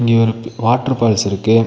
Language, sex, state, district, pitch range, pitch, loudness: Tamil, male, Tamil Nadu, Nilgiris, 115-120 Hz, 115 Hz, -16 LUFS